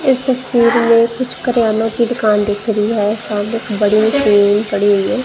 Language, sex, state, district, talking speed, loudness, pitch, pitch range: Hindi, female, Punjab, Kapurthala, 185 wpm, -14 LUFS, 220 Hz, 205-235 Hz